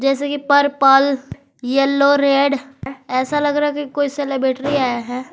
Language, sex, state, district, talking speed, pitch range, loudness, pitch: Hindi, female, Jharkhand, Garhwa, 160 wpm, 270-285 Hz, -17 LUFS, 275 Hz